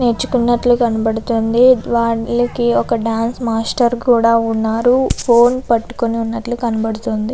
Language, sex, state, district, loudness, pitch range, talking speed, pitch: Telugu, female, Andhra Pradesh, Anantapur, -15 LUFS, 225-240 Hz, 100 wpm, 235 Hz